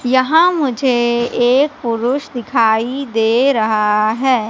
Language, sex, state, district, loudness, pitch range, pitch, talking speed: Hindi, female, Madhya Pradesh, Katni, -15 LUFS, 225-270 Hz, 245 Hz, 105 wpm